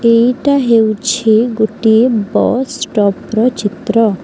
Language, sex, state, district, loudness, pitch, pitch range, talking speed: Odia, female, Odisha, Khordha, -13 LUFS, 230 Hz, 220-250 Hz, 100 wpm